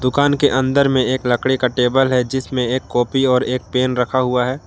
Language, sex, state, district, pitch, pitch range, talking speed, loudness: Hindi, male, Jharkhand, Garhwa, 130 Hz, 125-130 Hz, 230 wpm, -17 LUFS